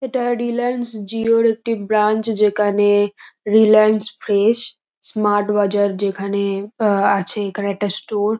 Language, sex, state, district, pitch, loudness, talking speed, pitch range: Bengali, female, West Bengal, North 24 Parganas, 210 Hz, -18 LUFS, 130 wpm, 205-225 Hz